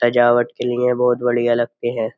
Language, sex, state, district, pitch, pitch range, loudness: Hindi, male, Uttar Pradesh, Jyotiba Phule Nagar, 120 Hz, 120-125 Hz, -18 LUFS